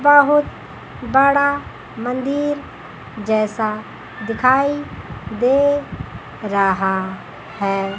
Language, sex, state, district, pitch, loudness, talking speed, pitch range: Hindi, female, Chandigarh, Chandigarh, 245 Hz, -18 LUFS, 60 wpm, 205-285 Hz